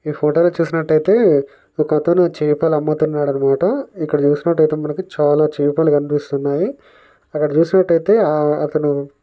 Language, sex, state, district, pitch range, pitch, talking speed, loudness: Telugu, male, Telangana, Nalgonda, 145-165 Hz, 150 Hz, 135 wpm, -16 LUFS